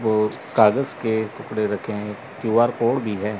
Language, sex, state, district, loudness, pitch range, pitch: Hindi, male, Chandigarh, Chandigarh, -22 LUFS, 105-115 Hz, 110 Hz